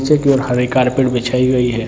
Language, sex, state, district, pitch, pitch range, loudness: Hindi, male, Bihar, Jamui, 125 Hz, 125-135 Hz, -15 LUFS